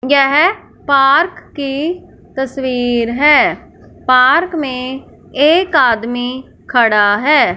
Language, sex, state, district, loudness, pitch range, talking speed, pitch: Hindi, male, Punjab, Fazilka, -13 LUFS, 255-300 Hz, 85 wpm, 275 Hz